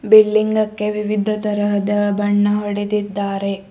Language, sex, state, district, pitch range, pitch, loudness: Kannada, female, Karnataka, Bidar, 205-210 Hz, 205 Hz, -18 LUFS